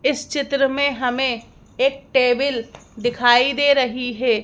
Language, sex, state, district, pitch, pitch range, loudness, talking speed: Hindi, male, Madhya Pradesh, Bhopal, 260 Hz, 245-275 Hz, -19 LUFS, 120 wpm